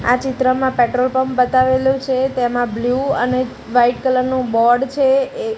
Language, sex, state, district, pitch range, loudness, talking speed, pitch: Gujarati, female, Gujarat, Gandhinagar, 245-265 Hz, -16 LUFS, 160 wpm, 255 Hz